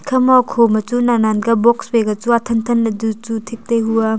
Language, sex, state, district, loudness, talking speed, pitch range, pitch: Wancho, female, Arunachal Pradesh, Longding, -16 LUFS, 255 wpm, 225-235 Hz, 230 Hz